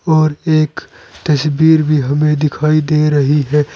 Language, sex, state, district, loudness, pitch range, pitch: Hindi, male, Uttar Pradesh, Saharanpur, -13 LUFS, 150-155 Hz, 150 Hz